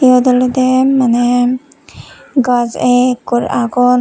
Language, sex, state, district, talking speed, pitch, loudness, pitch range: Chakma, female, Tripura, West Tripura, 90 wpm, 250 Hz, -12 LUFS, 245-255 Hz